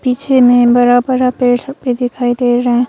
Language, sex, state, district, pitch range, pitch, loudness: Hindi, female, Arunachal Pradesh, Longding, 245-255 Hz, 245 Hz, -12 LUFS